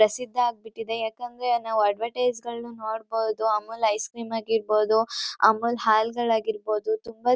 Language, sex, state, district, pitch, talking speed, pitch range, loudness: Kannada, female, Karnataka, Chamarajanagar, 225 Hz, 120 wpm, 220-235 Hz, -25 LUFS